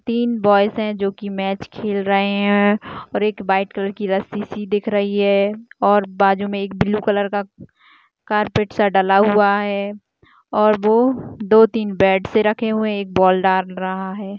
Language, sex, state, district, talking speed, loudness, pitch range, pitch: Hindi, female, Chhattisgarh, Jashpur, 185 wpm, -18 LUFS, 195-210 Hz, 205 Hz